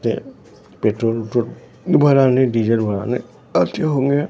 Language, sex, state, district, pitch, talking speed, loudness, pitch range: Hindi, male, Bihar, Katihar, 125 Hz, 125 wpm, -18 LUFS, 115-135 Hz